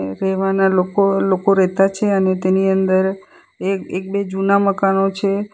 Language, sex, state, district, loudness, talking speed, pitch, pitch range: Gujarati, female, Gujarat, Valsad, -17 LUFS, 150 wpm, 195 Hz, 190-195 Hz